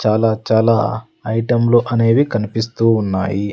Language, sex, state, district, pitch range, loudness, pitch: Telugu, male, Andhra Pradesh, Sri Satya Sai, 110-115 Hz, -16 LUFS, 115 Hz